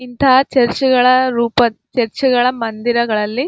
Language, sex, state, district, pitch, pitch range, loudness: Kannada, female, Karnataka, Gulbarga, 245 Hz, 235-260 Hz, -14 LUFS